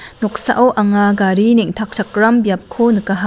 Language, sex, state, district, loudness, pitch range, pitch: Garo, female, Meghalaya, West Garo Hills, -14 LUFS, 200-230 Hz, 215 Hz